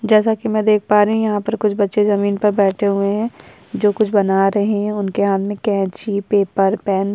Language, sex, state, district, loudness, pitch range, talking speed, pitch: Hindi, female, Chhattisgarh, Sukma, -17 LUFS, 200-215 Hz, 235 wpm, 205 Hz